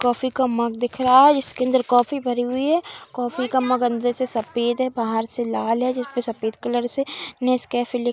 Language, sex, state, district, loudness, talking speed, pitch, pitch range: Hindi, female, Uttar Pradesh, Deoria, -21 LUFS, 220 wpm, 245 Hz, 240-260 Hz